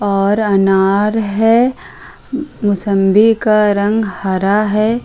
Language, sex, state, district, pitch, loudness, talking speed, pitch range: Hindi, female, Uttar Pradesh, Hamirpur, 210 Hz, -13 LUFS, 95 wpm, 200-220 Hz